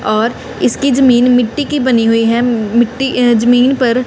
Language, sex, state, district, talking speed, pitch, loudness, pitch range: Hindi, female, Punjab, Kapurthala, 175 wpm, 245 Hz, -12 LUFS, 230-260 Hz